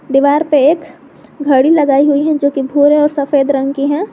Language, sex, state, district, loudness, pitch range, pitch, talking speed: Hindi, female, Jharkhand, Garhwa, -12 LUFS, 275-300 Hz, 285 Hz, 220 wpm